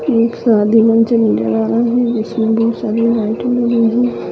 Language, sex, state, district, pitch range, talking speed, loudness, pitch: Hindi, female, Bihar, Gopalganj, 220-235 Hz, 125 wpm, -14 LUFS, 230 Hz